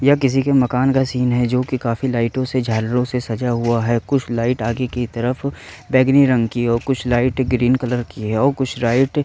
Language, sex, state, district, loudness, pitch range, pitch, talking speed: Hindi, male, Uttar Pradesh, Varanasi, -18 LUFS, 120-130 Hz, 125 Hz, 235 wpm